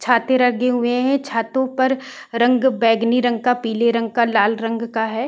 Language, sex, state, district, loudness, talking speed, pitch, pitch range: Hindi, female, Uttar Pradesh, Varanasi, -18 LUFS, 195 wpm, 240 Hz, 230-255 Hz